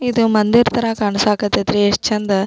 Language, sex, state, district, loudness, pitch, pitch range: Kannada, female, Karnataka, Belgaum, -16 LUFS, 215 Hz, 205-230 Hz